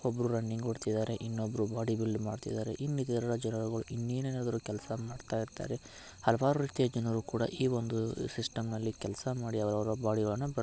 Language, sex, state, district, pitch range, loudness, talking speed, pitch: Kannada, male, Karnataka, Belgaum, 110-120 Hz, -35 LUFS, 145 wpm, 115 Hz